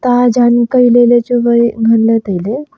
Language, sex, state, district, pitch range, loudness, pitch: Wancho, female, Arunachal Pradesh, Longding, 230-245 Hz, -10 LUFS, 240 Hz